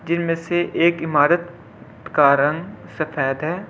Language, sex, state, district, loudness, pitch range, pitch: Hindi, male, Delhi, New Delhi, -19 LUFS, 150-170 Hz, 165 Hz